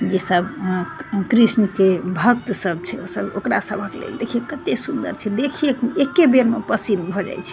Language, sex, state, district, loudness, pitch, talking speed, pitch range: Maithili, female, Bihar, Begusarai, -19 LUFS, 220 Hz, 205 wpm, 185-255 Hz